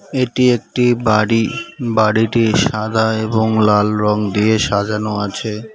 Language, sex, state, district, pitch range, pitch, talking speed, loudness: Bengali, male, West Bengal, Cooch Behar, 105-115 Hz, 110 Hz, 115 wpm, -16 LUFS